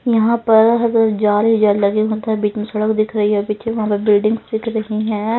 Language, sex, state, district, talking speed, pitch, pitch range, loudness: Hindi, female, Punjab, Fazilka, 245 wpm, 215 Hz, 210-225 Hz, -16 LUFS